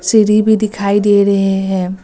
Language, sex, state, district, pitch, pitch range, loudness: Hindi, female, Uttar Pradesh, Lucknow, 200 Hz, 195-210 Hz, -13 LUFS